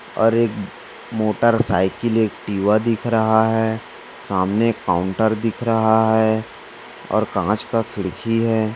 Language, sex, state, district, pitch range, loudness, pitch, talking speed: Hindi, male, Maharashtra, Dhule, 105-115 Hz, -19 LUFS, 110 Hz, 125 wpm